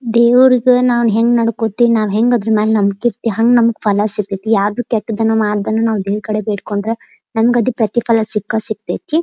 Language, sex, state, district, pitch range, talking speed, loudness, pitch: Kannada, female, Karnataka, Dharwad, 215-235 Hz, 170 wpm, -14 LUFS, 225 Hz